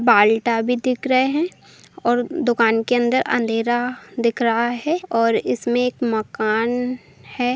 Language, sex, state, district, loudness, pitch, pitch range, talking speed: Bhojpuri, female, Bihar, Saran, -20 LUFS, 240 Hz, 230-250 Hz, 145 wpm